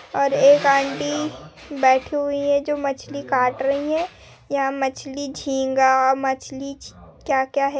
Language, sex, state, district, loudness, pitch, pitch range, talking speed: Hindi, female, Bihar, Gopalganj, -20 LUFS, 275 Hz, 270-285 Hz, 155 wpm